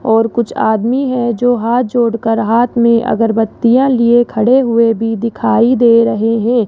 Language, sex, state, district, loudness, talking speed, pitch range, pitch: Hindi, female, Rajasthan, Jaipur, -12 LUFS, 160 wpm, 225-245 Hz, 230 Hz